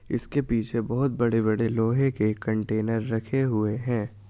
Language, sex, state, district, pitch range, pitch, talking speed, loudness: Hindi, male, Uttar Pradesh, Jyotiba Phule Nagar, 110-120 Hz, 115 Hz, 165 wpm, -26 LUFS